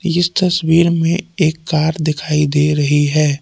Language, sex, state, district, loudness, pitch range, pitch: Hindi, male, Jharkhand, Palamu, -15 LUFS, 150-170 Hz, 160 Hz